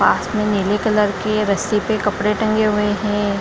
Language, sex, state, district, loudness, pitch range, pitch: Hindi, female, Bihar, Lakhisarai, -18 LUFS, 205-215 Hz, 210 Hz